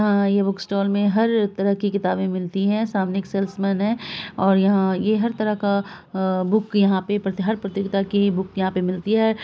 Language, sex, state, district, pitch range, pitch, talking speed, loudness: Hindi, female, Bihar, Araria, 190-205 Hz, 200 Hz, 205 wpm, -21 LUFS